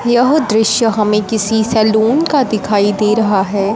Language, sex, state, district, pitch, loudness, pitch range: Hindi, female, Punjab, Fazilka, 220 Hz, -13 LUFS, 210-230 Hz